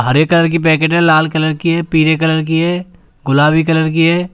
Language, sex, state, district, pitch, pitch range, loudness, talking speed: Hindi, male, Uttar Pradesh, Shamli, 160 Hz, 155-170 Hz, -13 LUFS, 235 wpm